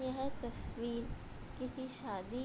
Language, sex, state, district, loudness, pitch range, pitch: Hindi, female, Uttar Pradesh, Budaun, -43 LUFS, 235-260 Hz, 255 Hz